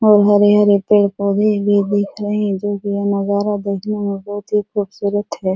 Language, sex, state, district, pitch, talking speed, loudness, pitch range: Hindi, female, Bihar, Supaul, 205 Hz, 185 wpm, -16 LUFS, 200-205 Hz